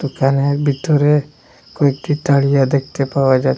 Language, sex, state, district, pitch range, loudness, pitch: Bengali, male, Assam, Hailakandi, 135-145 Hz, -16 LUFS, 140 Hz